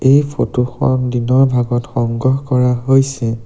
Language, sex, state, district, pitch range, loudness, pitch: Assamese, male, Assam, Sonitpur, 120-135 Hz, -15 LUFS, 125 Hz